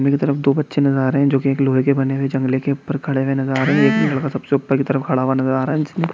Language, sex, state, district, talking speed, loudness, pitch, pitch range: Hindi, male, Chhattisgarh, Balrampur, 340 wpm, -18 LUFS, 135 Hz, 135-140 Hz